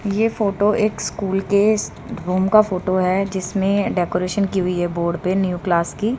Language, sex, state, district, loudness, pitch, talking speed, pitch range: Hindi, female, Haryana, Rohtak, -19 LUFS, 190 Hz, 185 wpm, 180-205 Hz